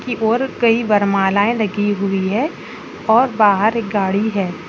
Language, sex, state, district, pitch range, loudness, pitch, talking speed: Hindi, female, Bihar, Bhagalpur, 200-230 Hz, -17 LUFS, 210 Hz, 155 wpm